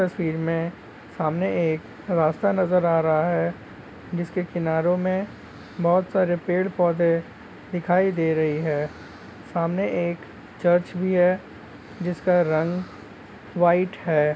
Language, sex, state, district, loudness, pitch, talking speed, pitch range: Hindi, male, Jharkhand, Sahebganj, -23 LUFS, 175 Hz, 130 wpm, 160-180 Hz